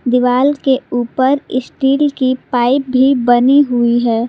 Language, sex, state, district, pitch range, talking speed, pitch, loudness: Hindi, female, Jharkhand, Garhwa, 245-270 Hz, 140 wpm, 255 Hz, -13 LUFS